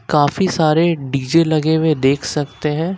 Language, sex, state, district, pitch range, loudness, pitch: Hindi, male, Uttar Pradesh, Lucknow, 145-165 Hz, -16 LUFS, 155 Hz